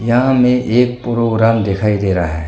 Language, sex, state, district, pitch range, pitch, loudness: Hindi, male, Arunachal Pradesh, Longding, 100-125 Hz, 115 Hz, -14 LUFS